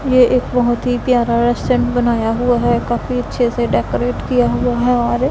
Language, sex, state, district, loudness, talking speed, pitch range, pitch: Hindi, female, Punjab, Pathankot, -16 LUFS, 190 wpm, 235-245 Hz, 240 Hz